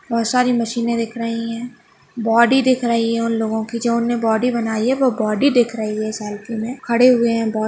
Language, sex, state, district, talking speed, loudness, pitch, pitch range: Hindi, female, Goa, North and South Goa, 225 wpm, -18 LUFS, 235 Hz, 225-240 Hz